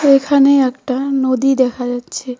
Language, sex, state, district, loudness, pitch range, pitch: Bengali, female, West Bengal, Cooch Behar, -15 LUFS, 255-275 Hz, 265 Hz